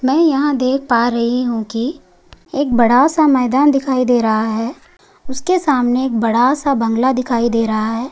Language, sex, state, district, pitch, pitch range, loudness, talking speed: Hindi, female, Maharashtra, Chandrapur, 250 Hz, 235-275 Hz, -15 LUFS, 190 wpm